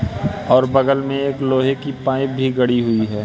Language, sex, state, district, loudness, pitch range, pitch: Hindi, male, Madhya Pradesh, Katni, -18 LUFS, 125-135 Hz, 130 Hz